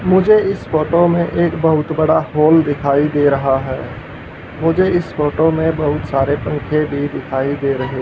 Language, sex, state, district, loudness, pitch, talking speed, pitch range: Hindi, male, Haryana, Rohtak, -16 LUFS, 150 Hz, 170 wpm, 140-165 Hz